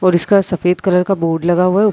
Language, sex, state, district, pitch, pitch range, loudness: Hindi, female, Bihar, Purnia, 180 Hz, 175-195 Hz, -14 LUFS